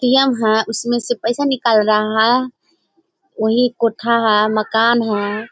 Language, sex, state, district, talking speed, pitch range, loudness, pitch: Hindi, female, Bihar, Sitamarhi, 140 wpm, 220-250 Hz, -16 LUFS, 230 Hz